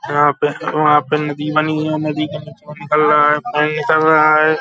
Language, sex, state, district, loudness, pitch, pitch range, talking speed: Hindi, male, Uttar Pradesh, Hamirpur, -15 LUFS, 150 Hz, 150-155 Hz, 210 wpm